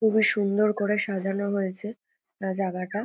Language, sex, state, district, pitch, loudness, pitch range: Bengali, female, West Bengal, North 24 Parganas, 205 Hz, -26 LUFS, 195-210 Hz